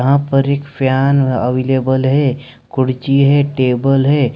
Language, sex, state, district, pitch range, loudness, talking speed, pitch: Hindi, male, Jharkhand, Deoghar, 130-140 Hz, -14 LUFS, 135 wpm, 135 Hz